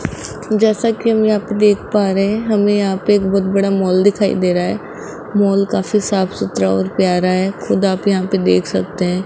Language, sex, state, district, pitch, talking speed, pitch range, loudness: Hindi, male, Rajasthan, Jaipur, 195 Hz, 220 wpm, 185-210 Hz, -16 LUFS